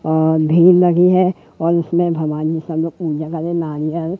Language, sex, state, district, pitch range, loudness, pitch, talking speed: Hindi, male, Madhya Pradesh, Katni, 160-175 Hz, -16 LUFS, 165 Hz, 115 wpm